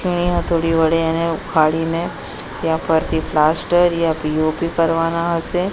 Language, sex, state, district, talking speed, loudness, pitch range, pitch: Gujarati, female, Gujarat, Gandhinagar, 115 wpm, -18 LUFS, 160-170 Hz, 165 Hz